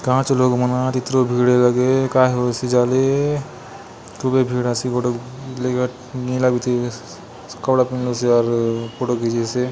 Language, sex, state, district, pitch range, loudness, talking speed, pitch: Chhattisgarhi, male, Chhattisgarh, Bastar, 125-130 Hz, -19 LUFS, 150 wpm, 125 Hz